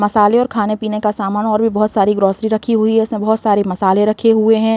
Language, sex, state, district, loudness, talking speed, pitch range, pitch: Hindi, female, Uttar Pradesh, Varanasi, -15 LUFS, 265 wpm, 205-220 Hz, 215 Hz